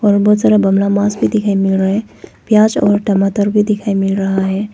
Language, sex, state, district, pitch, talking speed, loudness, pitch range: Hindi, female, Arunachal Pradesh, Papum Pare, 205 Hz, 215 wpm, -13 LUFS, 195-210 Hz